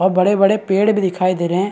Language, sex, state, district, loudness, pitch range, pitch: Hindi, male, Chhattisgarh, Bastar, -16 LUFS, 185-200 Hz, 190 Hz